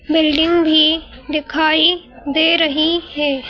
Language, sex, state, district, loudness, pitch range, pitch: Hindi, female, Madhya Pradesh, Bhopal, -15 LUFS, 300-325 Hz, 315 Hz